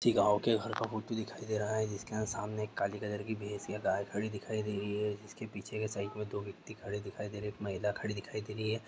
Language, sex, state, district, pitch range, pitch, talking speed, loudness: Hindi, male, Jharkhand, Sahebganj, 105-110 Hz, 105 Hz, 270 wpm, -37 LUFS